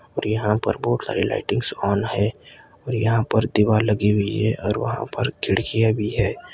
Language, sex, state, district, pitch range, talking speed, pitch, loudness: Hindi, male, Maharashtra, Gondia, 105-110 Hz, 195 wpm, 110 Hz, -21 LUFS